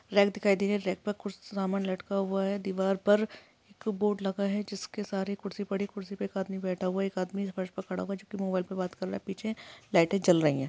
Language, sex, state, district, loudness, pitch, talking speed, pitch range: Hindi, female, Maharashtra, Aurangabad, -31 LUFS, 195 Hz, 270 wpm, 190-205 Hz